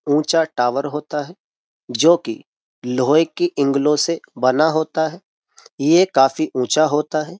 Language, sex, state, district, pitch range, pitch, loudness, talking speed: Hindi, male, Uttar Pradesh, Jyotiba Phule Nagar, 140-165 Hz, 150 Hz, -18 LUFS, 145 wpm